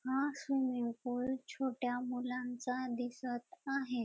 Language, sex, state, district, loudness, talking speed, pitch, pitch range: Marathi, female, Maharashtra, Dhule, -39 LUFS, 105 wpm, 250 Hz, 245-265 Hz